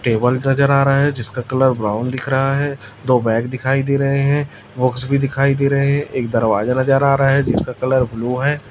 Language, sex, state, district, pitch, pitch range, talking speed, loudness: Hindi, male, Chhattisgarh, Raipur, 130 Hz, 125-140 Hz, 220 wpm, -17 LUFS